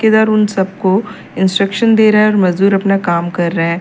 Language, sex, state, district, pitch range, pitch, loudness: Hindi, female, Uttar Pradesh, Lalitpur, 185-215 Hz, 195 Hz, -13 LUFS